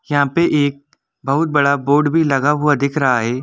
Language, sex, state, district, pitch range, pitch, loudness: Hindi, male, Jharkhand, Jamtara, 140-150 Hz, 145 Hz, -16 LUFS